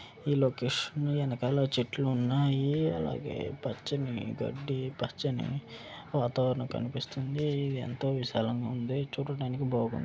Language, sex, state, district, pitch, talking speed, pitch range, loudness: Telugu, male, Andhra Pradesh, Chittoor, 130 Hz, 95 wpm, 125-140 Hz, -32 LUFS